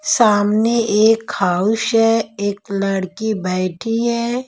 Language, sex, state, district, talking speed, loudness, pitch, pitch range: Hindi, female, Bihar, Patna, 105 wpm, -17 LUFS, 215 Hz, 200-225 Hz